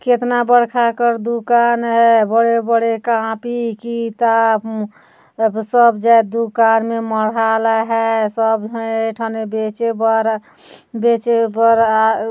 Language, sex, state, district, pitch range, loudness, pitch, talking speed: Hindi, female, Chhattisgarh, Sarguja, 225-235 Hz, -16 LUFS, 225 Hz, 110 wpm